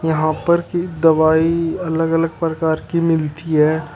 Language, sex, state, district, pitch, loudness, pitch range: Hindi, male, Uttar Pradesh, Shamli, 165 Hz, -17 LUFS, 160-165 Hz